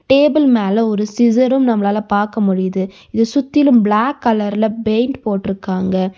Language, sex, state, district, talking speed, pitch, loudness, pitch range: Tamil, female, Tamil Nadu, Nilgiris, 125 wpm, 220 Hz, -15 LUFS, 200-245 Hz